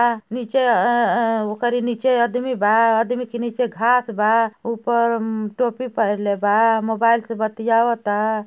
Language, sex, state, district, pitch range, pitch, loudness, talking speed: Bhojpuri, female, Uttar Pradesh, Ghazipur, 220-240 Hz, 230 Hz, -19 LUFS, 150 wpm